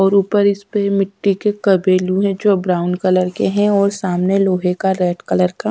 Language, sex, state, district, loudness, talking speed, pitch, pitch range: Hindi, female, Bihar, Katihar, -16 LUFS, 210 wpm, 195 Hz, 185-200 Hz